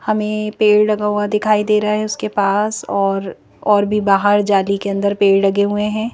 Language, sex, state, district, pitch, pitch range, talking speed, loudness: Hindi, female, Madhya Pradesh, Bhopal, 210 Hz, 200-210 Hz, 205 wpm, -16 LUFS